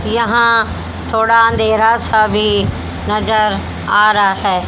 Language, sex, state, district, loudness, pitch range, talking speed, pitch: Hindi, female, Haryana, Rohtak, -13 LUFS, 210-230 Hz, 115 wpm, 220 Hz